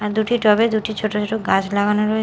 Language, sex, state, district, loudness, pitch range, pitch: Bengali, female, Odisha, Malkangiri, -19 LUFS, 210-220 Hz, 215 Hz